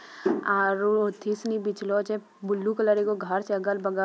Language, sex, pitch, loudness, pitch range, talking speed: Magahi, female, 205 Hz, -27 LUFS, 200-210 Hz, 175 wpm